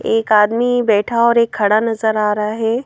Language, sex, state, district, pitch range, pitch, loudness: Hindi, female, Madhya Pradesh, Bhopal, 210-235 Hz, 225 Hz, -15 LUFS